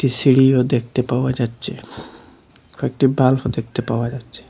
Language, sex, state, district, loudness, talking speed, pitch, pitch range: Bengali, male, Assam, Hailakandi, -18 LUFS, 135 wpm, 125 Hz, 120-130 Hz